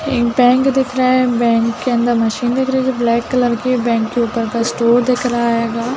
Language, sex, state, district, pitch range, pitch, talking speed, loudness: Hindi, female, Chhattisgarh, Rajnandgaon, 235-255 Hz, 240 Hz, 230 wpm, -15 LUFS